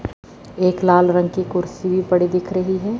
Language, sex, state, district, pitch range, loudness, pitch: Hindi, female, Chandigarh, Chandigarh, 180-185 Hz, -18 LUFS, 185 Hz